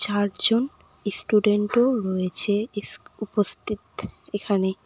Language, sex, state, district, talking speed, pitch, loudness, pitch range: Bengali, female, West Bengal, Cooch Behar, 75 wpm, 205 Hz, -22 LUFS, 200-215 Hz